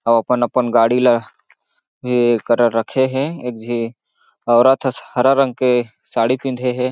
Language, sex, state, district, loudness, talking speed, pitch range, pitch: Chhattisgarhi, male, Chhattisgarh, Jashpur, -17 LUFS, 140 wpm, 115-130 Hz, 125 Hz